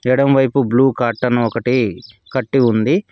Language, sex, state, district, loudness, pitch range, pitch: Telugu, male, Telangana, Mahabubabad, -16 LUFS, 115-130 Hz, 125 Hz